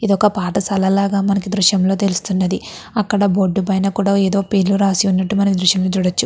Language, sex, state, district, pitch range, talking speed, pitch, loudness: Telugu, female, Andhra Pradesh, Guntur, 190-200 Hz, 210 wpm, 195 Hz, -16 LUFS